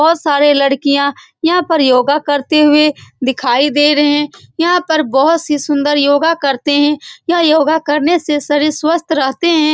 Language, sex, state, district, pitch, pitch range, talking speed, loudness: Hindi, female, Bihar, Saran, 295 Hz, 285-320 Hz, 170 wpm, -12 LUFS